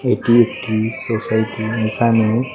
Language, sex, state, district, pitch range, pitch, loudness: Bengali, male, Tripura, West Tripura, 110-120 Hz, 115 Hz, -17 LUFS